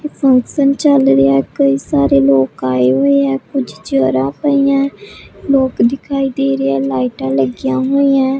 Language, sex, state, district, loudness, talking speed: Punjabi, female, Punjab, Pathankot, -14 LUFS, 135 wpm